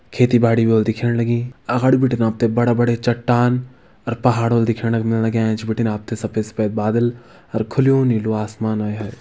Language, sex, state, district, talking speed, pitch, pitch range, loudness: Hindi, male, Uttarakhand, Tehri Garhwal, 230 wpm, 115 Hz, 110-120 Hz, -18 LUFS